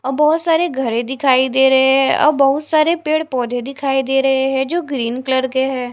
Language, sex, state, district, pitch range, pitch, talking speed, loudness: Hindi, female, Punjab, Fazilka, 260-300 Hz, 265 Hz, 210 wpm, -16 LUFS